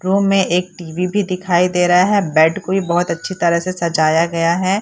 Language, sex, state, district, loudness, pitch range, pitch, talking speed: Hindi, female, Bihar, Purnia, -16 LUFS, 170-190 Hz, 180 Hz, 235 wpm